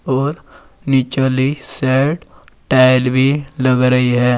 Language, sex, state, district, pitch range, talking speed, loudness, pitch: Hindi, male, Uttar Pradesh, Saharanpur, 130-135 Hz, 125 wpm, -15 LUFS, 130 Hz